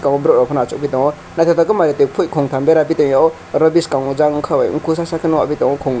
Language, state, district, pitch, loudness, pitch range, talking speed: Kokborok, Tripura, West Tripura, 150 Hz, -15 LUFS, 140-160 Hz, 220 wpm